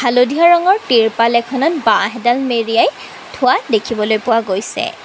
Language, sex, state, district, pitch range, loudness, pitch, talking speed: Assamese, female, Assam, Kamrup Metropolitan, 225-265 Hz, -14 LUFS, 240 Hz, 130 wpm